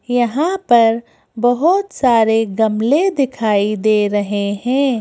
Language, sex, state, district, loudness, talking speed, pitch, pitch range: Hindi, female, Madhya Pradesh, Bhopal, -15 LUFS, 95 wpm, 230 Hz, 215-270 Hz